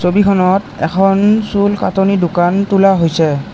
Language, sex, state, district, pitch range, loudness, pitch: Assamese, male, Assam, Kamrup Metropolitan, 175-200 Hz, -13 LUFS, 195 Hz